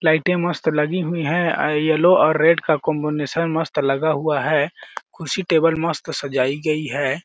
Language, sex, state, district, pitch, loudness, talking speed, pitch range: Hindi, male, Chhattisgarh, Balrampur, 155 Hz, -19 LUFS, 175 wpm, 150-165 Hz